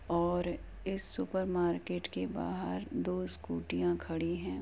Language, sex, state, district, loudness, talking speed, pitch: Hindi, female, Uttar Pradesh, Muzaffarnagar, -35 LUFS, 130 wpm, 165 Hz